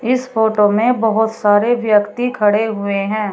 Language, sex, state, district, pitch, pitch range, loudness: Hindi, female, Uttar Pradesh, Shamli, 220 Hz, 210-230 Hz, -15 LUFS